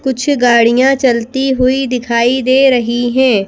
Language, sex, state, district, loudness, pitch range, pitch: Hindi, female, Madhya Pradesh, Bhopal, -12 LUFS, 240-265 Hz, 255 Hz